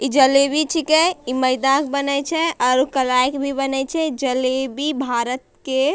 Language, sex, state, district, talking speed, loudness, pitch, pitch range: Angika, female, Bihar, Bhagalpur, 180 wpm, -19 LUFS, 275 Hz, 260-290 Hz